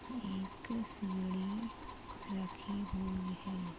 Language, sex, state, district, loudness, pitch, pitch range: Hindi, female, Uttar Pradesh, Ghazipur, -41 LUFS, 200 Hz, 190-230 Hz